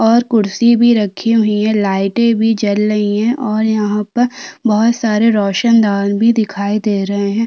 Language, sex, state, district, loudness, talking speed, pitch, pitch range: Hindi, female, Chhattisgarh, Sukma, -14 LUFS, 175 wpm, 215 Hz, 205-230 Hz